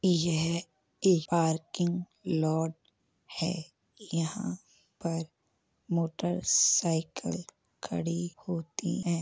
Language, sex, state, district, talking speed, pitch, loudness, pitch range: Hindi, female, Uttar Pradesh, Hamirpur, 80 wpm, 170 Hz, -30 LUFS, 165-175 Hz